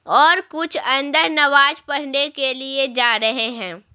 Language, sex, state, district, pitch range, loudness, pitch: Hindi, female, Bihar, Patna, 245-295 Hz, -16 LUFS, 275 Hz